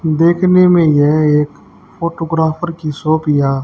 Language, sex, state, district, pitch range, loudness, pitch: Hindi, female, Haryana, Charkhi Dadri, 150-170 Hz, -13 LUFS, 160 Hz